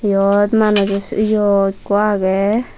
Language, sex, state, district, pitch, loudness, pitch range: Chakma, female, Tripura, Dhalai, 205 Hz, -15 LUFS, 195-210 Hz